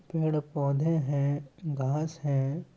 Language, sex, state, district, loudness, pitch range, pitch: Chhattisgarhi, male, Chhattisgarh, Balrampur, -30 LUFS, 140-160 Hz, 150 Hz